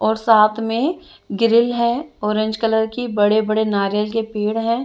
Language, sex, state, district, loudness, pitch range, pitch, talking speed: Hindi, female, Chandigarh, Chandigarh, -18 LUFS, 215-235 Hz, 220 Hz, 175 wpm